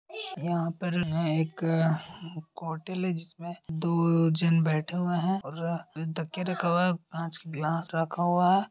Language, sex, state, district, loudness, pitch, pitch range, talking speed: Hindi, male, Uttar Pradesh, Deoria, -29 LUFS, 170 Hz, 165-175 Hz, 150 wpm